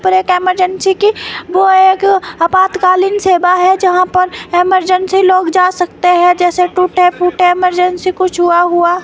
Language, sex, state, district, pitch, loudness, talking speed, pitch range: Hindi, female, Himachal Pradesh, Shimla, 365 Hz, -11 LUFS, 145 wpm, 360-375 Hz